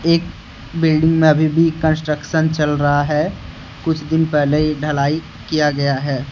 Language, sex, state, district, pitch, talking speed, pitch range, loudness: Hindi, male, Jharkhand, Deoghar, 155 Hz, 160 wpm, 145-160 Hz, -17 LUFS